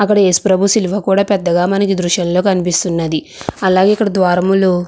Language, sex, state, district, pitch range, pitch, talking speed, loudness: Telugu, female, Andhra Pradesh, Chittoor, 175-195 Hz, 185 Hz, 160 wpm, -14 LUFS